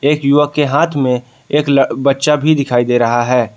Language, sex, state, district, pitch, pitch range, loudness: Hindi, male, Jharkhand, Palamu, 140 Hz, 125-145 Hz, -13 LUFS